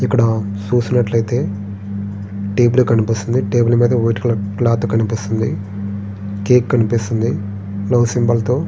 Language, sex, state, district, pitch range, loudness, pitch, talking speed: Telugu, male, Andhra Pradesh, Srikakulam, 100-120 Hz, -17 LUFS, 115 Hz, 105 wpm